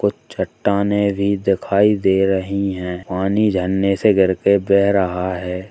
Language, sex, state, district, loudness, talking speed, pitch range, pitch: Hindi, male, Bihar, Purnia, -18 LUFS, 160 wpm, 95-100 Hz, 95 Hz